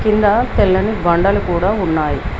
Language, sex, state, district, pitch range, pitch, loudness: Telugu, female, Telangana, Mahabubabad, 170-205 Hz, 195 Hz, -15 LUFS